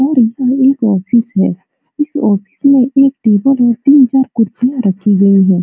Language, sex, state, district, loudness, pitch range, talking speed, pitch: Hindi, female, Bihar, Supaul, -11 LUFS, 205-270 Hz, 190 wpm, 245 Hz